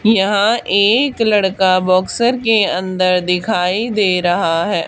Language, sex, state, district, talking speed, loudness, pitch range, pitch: Hindi, female, Haryana, Charkhi Dadri, 125 wpm, -14 LUFS, 185-220 Hz, 195 Hz